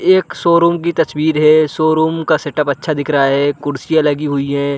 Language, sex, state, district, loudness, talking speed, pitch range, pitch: Hindi, male, Chhattisgarh, Sarguja, -14 LUFS, 215 wpm, 145-160 Hz, 155 Hz